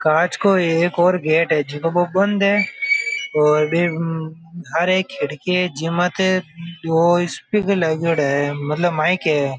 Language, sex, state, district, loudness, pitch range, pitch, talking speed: Marwari, male, Rajasthan, Nagaur, -18 LUFS, 155-185 Hz, 170 Hz, 155 wpm